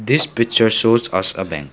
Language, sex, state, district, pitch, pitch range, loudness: English, male, Assam, Kamrup Metropolitan, 115 Hz, 95-115 Hz, -16 LUFS